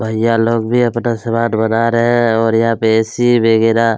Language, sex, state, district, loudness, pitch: Hindi, male, Chhattisgarh, Kabirdham, -14 LUFS, 115 Hz